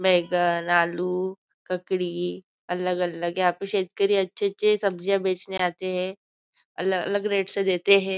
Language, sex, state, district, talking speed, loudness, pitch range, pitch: Hindi, female, Maharashtra, Nagpur, 145 wpm, -25 LUFS, 180-195 Hz, 185 Hz